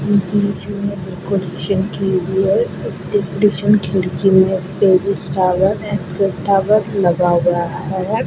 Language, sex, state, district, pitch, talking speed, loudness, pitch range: Hindi, female, Rajasthan, Bikaner, 190 Hz, 65 wpm, -16 LUFS, 185-200 Hz